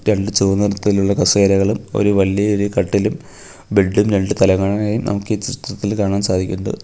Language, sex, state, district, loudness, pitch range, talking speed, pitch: Malayalam, male, Kerala, Kollam, -17 LUFS, 100-105 Hz, 130 wpm, 100 Hz